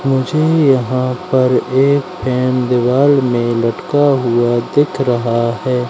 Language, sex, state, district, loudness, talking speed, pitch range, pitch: Hindi, male, Madhya Pradesh, Katni, -14 LUFS, 120 wpm, 120-140 Hz, 130 Hz